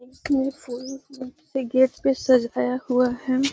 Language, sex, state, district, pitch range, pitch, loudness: Magahi, female, Bihar, Gaya, 250-270 Hz, 260 Hz, -23 LUFS